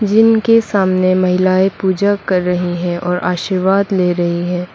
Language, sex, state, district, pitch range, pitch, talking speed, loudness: Hindi, female, Mizoram, Aizawl, 180-195 Hz, 185 Hz, 165 wpm, -14 LUFS